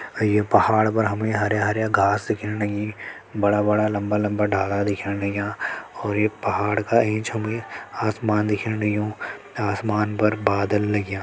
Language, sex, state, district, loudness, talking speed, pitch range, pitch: Hindi, male, Uttarakhand, Tehri Garhwal, -22 LUFS, 155 wpm, 105-110 Hz, 105 Hz